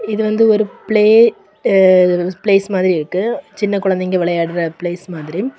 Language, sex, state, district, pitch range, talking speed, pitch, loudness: Tamil, female, Tamil Nadu, Kanyakumari, 180-215 Hz, 140 wpm, 190 Hz, -15 LUFS